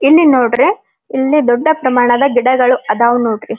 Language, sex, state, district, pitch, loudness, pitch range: Kannada, female, Karnataka, Dharwad, 255 Hz, -12 LUFS, 240-295 Hz